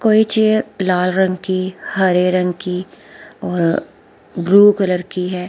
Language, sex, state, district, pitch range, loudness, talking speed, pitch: Hindi, female, Himachal Pradesh, Shimla, 180-195 Hz, -16 LUFS, 140 wpm, 185 Hz